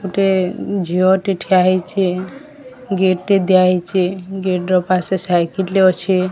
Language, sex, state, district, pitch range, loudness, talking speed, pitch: Odia, female, Odisha, Sambalpur, 185-195 Hz, -16 LUFS, 125 wpm, 185 Hz